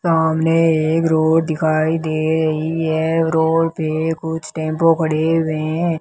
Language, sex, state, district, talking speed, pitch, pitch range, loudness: Hindi, male, Rajasthan, Bikaner, 140 wpm, 160 Hz, 155-165 Hz, -17 LUFS